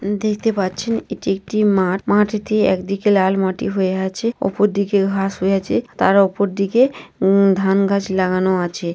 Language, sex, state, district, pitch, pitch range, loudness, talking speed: Bengali, female, West Bengal, North 24 Parganas, 195 Hz, 190-205 Hz, -18 LUFS, 160 wpm